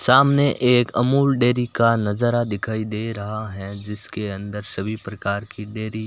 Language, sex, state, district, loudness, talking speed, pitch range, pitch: Hindi, male, Rajasthan, Bikaner, -21 LUFS, 170 wpm, 105-120 Hz, 110 Hz